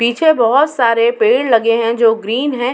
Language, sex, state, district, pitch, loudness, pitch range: Hindi, female, Uttar Pradesh, Muzaffarnagar, 240 Hz, -13 LUFS, 230-290 Hz